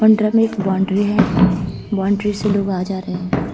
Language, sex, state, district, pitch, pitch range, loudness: Hindi, female, Uttar Pradesh, Hamirpur, 200 Hz, 190-210 Hz, -18 LUFS